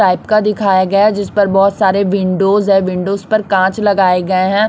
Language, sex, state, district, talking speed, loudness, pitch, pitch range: Hindi, female, Chhattisgarh, Raipur, 205 wpm, -13 LUFS, 195 Hz, 190-205 Hz